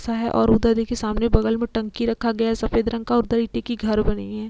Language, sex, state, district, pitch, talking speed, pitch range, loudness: Hindi, female, Uttar Pradesh, Jyotiba Phule Nagar, 230 Hz, 250 wpm, 215-230 Hz, -22 LUFS